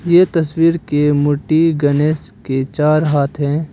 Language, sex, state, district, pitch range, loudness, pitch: Hindi, female, Arunachal Pradesh, Papum Pare, 145-160 Hz, -15 LUFS, 150 Hz